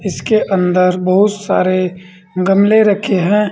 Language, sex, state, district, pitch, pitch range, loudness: Hindi, male, Uttar Pradesh, Saharanpur, 190 Hz, 185-205 Hz, -13 LUFS